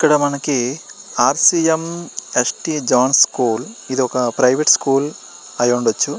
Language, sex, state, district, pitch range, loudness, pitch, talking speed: Telugu, male, Andhra Pradesh, Srikakulam, 125-155 Hz, -16 LUFS, 140 Hz, 155 wpm